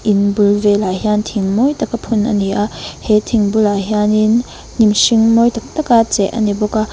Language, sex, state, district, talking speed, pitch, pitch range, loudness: Mizo, female, Mizoram, Aizawl, 215 wpm, 210 Hz, 205-225 Hz, -14 LUFS